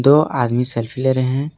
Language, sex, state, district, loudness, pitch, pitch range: Hindi, male, Jharkhand, Garhwa, -18 LUFS, 130 Hz, 125-140 Hz